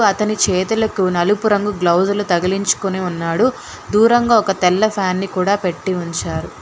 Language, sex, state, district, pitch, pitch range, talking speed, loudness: Telugu, female, Telangana, Hyderabad, 195 Hz, 185-210 Hz, 125 wpm, -17 LUFS